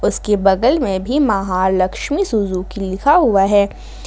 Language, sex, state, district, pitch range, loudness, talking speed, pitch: Hindi, female, Jharkhand, Ranchi, 190-215 Hz, -16 LUFS, 135 wpm, 195 Hz